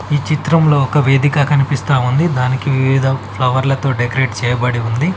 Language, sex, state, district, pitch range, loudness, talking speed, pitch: Telugu, male, Telangana, Mahabubabad, 125-145 Hz, -15 LUFS, 140 wpm, 135 Hz